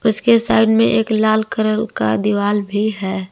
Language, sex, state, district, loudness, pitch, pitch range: Hindi, female, Jharkhand, Garhwa, -16 LUFS, 210 Hz, 185-220 Hz